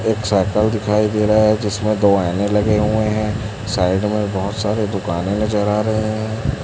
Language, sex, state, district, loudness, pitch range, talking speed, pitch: Hindi, male, Chhattisgarh, Raipur, -18 LUFS, 100-110 Hz, 190 wpm, 105 Hz